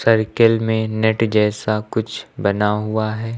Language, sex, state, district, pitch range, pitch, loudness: Hindi, male, Uttar Pradesh, Lucknow, 105-115 Hz, 110 Hz, -18 LUFS